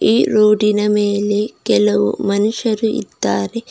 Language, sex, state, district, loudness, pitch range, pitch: Kannada, female, Karnataka, Bidar, -16 LUFS, 200-215 Hz, 210 Hz